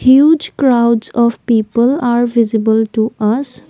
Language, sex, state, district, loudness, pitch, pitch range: English, female, Assam, Kamrup Metropolitan, -13 LUFS, 235 Hz, 220-255 Hz